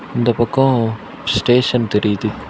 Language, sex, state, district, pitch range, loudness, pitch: Tamil, male, Tamil Nadu, Kanyakumari, 110-125 Hz, -17 LUFS, 120 Hz